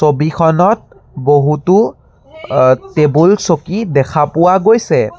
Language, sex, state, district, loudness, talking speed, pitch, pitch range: Assamese, male, Assam, Sonitpur, -12 LUFS, 80 wpm, 160 Hz, 150-195 Hz